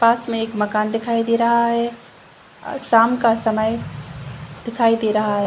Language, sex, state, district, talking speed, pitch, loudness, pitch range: Hindi, female, Chhattisgarh, Rajnandgaon, 175 wpm, 225 Hz, -19 LUFS, 215-235 Hz